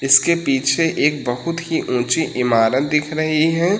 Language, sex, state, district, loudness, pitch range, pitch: Hindi, male, Uttar Pradesh, Lucknow, -18 LUFS, 130-165 Hz, 150 Hz